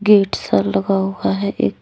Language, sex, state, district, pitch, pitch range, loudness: Hindi, female, Jharkhand, Deoghar, 195 Hz, 185-200 Hz, -18 LUFS